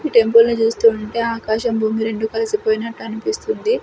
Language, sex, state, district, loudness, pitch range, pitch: Telugu, female, Andhra Pradesh, Sri Satya Sai, -18 LUFS, 220-235 Hz, 225 Hz